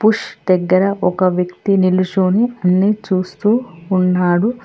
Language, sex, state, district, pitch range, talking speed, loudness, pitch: Telugu, female, Telangana, Hyderabad, 180-210 Hz, 105 wpm, -16 LUFS, 185 Hz